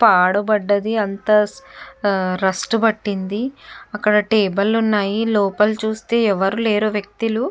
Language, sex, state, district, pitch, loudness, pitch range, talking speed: Telugu, female, Andhra Pradesh, Chittoor, 210 Hz, -18 LUFS, 200-220 Hz, 110 wpm